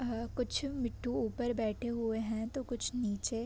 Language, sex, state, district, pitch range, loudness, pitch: Hindi, female, Chhattisgarh, Bilaspur, 225-245 Hz, -36 LUFS, 235 Hz